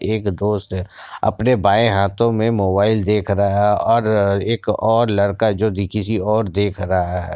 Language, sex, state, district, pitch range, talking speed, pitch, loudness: Hindi, male, Bihar, Kishanganj, 100-110 Hz, 170 wpm, 105 Hz, -18 LUFS